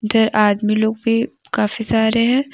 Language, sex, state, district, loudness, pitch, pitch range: Hindi, female, Jharkhand, Deoghar, -17 LUFS, 220 Hz, 215-230 Hz